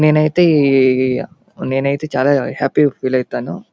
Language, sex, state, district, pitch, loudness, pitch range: Telugu, male, Andhra Pradesh, Chittoor, 140 Hz, -15 LUFS, 130-150 Hz